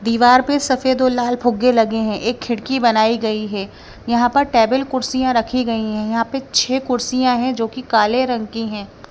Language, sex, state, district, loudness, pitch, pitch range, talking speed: Hindi, female, Punjab, Kapurthala, -17 LUFS, 240 Hz, 225-255 Hz, 205 wpm